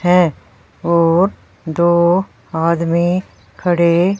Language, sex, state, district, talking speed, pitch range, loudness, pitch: Hindi, female, Haryana, Rohtak, 70 wpm, 165-180 Hz, -16 LUFS, 170 Hz